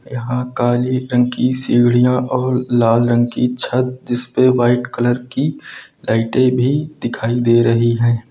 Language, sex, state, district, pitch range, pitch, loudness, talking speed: Hindi, male, Uttar Pradesh, Lucknow, 120-125 Hz, 125 Hz, -16 LUFS, 150 wpm